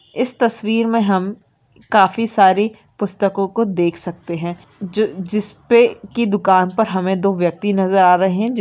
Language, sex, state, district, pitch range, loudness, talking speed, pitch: Hindi, female, Uttarakhand, Uttarkashi, 185-225 Hz, -17 LUFS, 175 wpm, 200 Hz